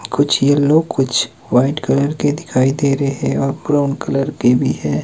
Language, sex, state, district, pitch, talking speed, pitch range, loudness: Hindi, male, Himachal Pradesh, Shimla, 140 Hz, 190 wpm, 130-145 Hz, -16 LUFS